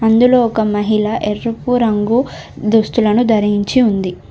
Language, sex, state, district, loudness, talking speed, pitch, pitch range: Telugu, female, Telangana, Komaram Bheem, -14 LUFS, 110 wpm, 220 Hz, 210-235 Hz